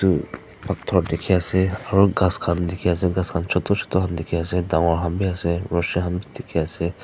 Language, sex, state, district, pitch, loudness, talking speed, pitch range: Nagamese, female, Nagaland, Dimapur, 90 Hz, -22 LUFS, 160 wpm, 85-95 Hz